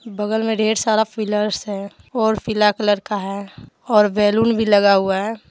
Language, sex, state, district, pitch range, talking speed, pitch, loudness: Hindi, female, Jharkhand, Deoghar, 205-220 Hz, 185 wpm, 210 Hz, -18 LUFS